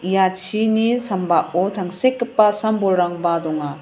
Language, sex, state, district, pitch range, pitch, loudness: Garo, female, Meghalaya, West Garo Hills, 175-220 Hz, 190 Hz, -19 LUFS